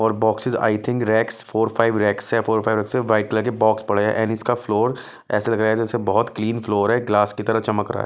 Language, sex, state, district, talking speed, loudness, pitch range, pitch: Hindi, male, Bihar, West Champaran, 275 wpm, -20 LUFS, 105-115 Hz, 110 Hz